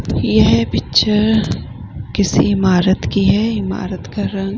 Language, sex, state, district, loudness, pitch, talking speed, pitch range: Hindi, female, Bihar, Vaishali, -15 LUFS, 195 Hz, 155 wpm, 180-210 Hz